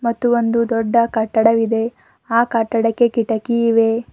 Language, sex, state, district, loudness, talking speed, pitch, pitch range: Kannada, female, Karnataka, Bidar, -17 LUFS, 115 wpm, 230 Hz, 225-235 Hz